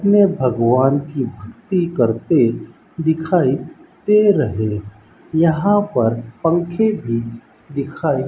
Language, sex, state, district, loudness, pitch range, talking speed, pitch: Hindi, male, Rajasthan, Bikaner, -18 LUFS, 115-175 Hz, 100 wpm, 145 Hz